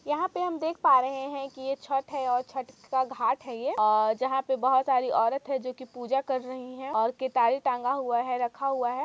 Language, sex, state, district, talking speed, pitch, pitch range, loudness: Hindi, female, Chhattisgarh, Kabirdham, 260 wpm, 260 Hz, 250-275 Hz, -28 LUFS